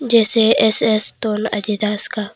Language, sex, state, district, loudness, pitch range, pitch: Hindi, female, Arunachal Pradesh, Papum Pare, -15 LUFS, 210-225 Hz, 215 Hz